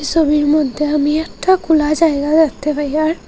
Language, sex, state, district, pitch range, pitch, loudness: Bengali, female, Assam, Hailakandi, 295-320 Hz, 300 Hz, -15 LUFS